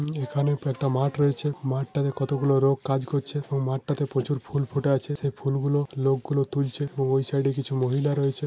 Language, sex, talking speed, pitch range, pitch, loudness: Bengali, male, 225 wpm, 135-145 Hz, 140 Hz, -26 LUFS